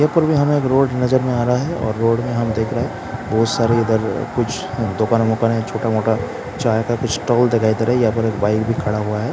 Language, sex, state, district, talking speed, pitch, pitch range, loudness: Hindi, male, Bihar, Saran, 225 wpm, 115 Hz, 110-125 Hz, -18 LUFS